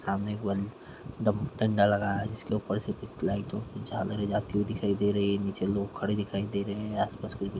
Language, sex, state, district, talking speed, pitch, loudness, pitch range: Hindi, male, Chhattisgarh, Korba, 215 wpm, 105 Hz, -31 LUFS, 100-105 Hz